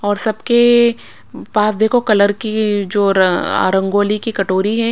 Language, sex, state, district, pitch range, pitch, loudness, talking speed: Hindi, female, Bihar, Patna, 200-230 Hz, 210 Hz, -15 LUFS, 170 wpm